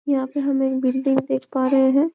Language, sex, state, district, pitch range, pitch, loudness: Hindi, female, Chhattisgarh, Bastar, 260-275 Hz, 270 Hz, -21 LUFS